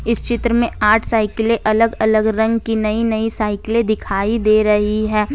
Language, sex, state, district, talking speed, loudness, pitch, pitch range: Hindi, female, Jharkhand, Ranchi, 200 wpm, -17 LUFS, 220 Hz, 215-230 Hz